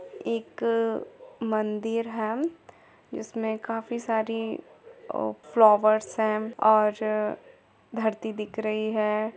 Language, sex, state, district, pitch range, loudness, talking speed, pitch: Hindi, female, Jharkhand, Jamtara, 215-230 Hz, -26 LUFS, 85 wpm, 220 Hz